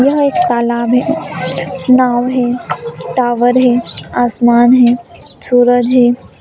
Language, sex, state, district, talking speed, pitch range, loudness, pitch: Hindi, female, Bihar, Madhepura, 110 wpm, 240-255 Hz, -12 LUFS, 245 Hz